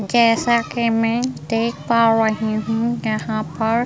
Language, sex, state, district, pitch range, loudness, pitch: Hindi, female, Punjab, Pathankot, 220-235 Hz, -19 LUFS, 225 Hz